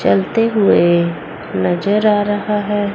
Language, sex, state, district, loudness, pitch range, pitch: Hindi, female, Chandigarh, Chandigarh, -15 LUFS, 175-210 Hz, 205 Hz